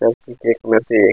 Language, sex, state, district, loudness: Hindi, male, Chhattisgarh, Kabirdham, -17 LUFS